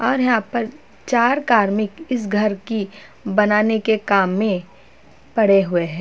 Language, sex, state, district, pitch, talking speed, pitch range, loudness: Hindi, female, Maharashtra, Chandrapur, 215 Hz, 150 wpm, 200-235 Hz, -19 LUFS